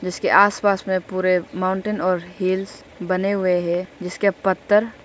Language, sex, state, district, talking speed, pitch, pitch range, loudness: Hindi, female, Arunachal Pradesh, Lower Dibang Valley, 145 wpm, 185 Hz, 180-200 Hz, -20 LUFS